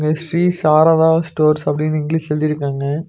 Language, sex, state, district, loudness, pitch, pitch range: Tamil, male, Tamil Nadu, Nilgiris, -16 LUFS, 155 Hz, 150-160 Hz